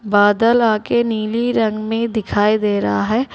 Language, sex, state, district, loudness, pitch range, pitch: Hindi, female, Telangana, Hyderabad, -17 LUFS, 210-230 Hz, 220 Hz